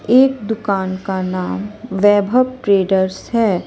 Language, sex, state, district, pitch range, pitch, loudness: Hindi, female, Chhattisgarh, Raipur, 190-230 Hz, 205 Hz, -17 LUFS